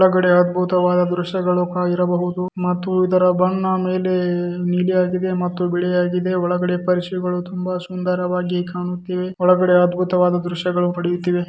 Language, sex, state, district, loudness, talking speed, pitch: Kannada, male, Karnataka, Dharwad, -19 LUFS, 115 wpm, 180 Hz